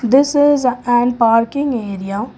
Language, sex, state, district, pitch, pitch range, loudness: English, female, Karnataka, Bangalore, 245 Hz, 230-275 Hz, -15 LUFS